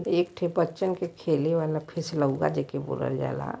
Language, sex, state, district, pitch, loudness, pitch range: Hindi, male, Uttar Pradesh, Varanasi, 165 Hz, -28 LUFS, 155-175 Hz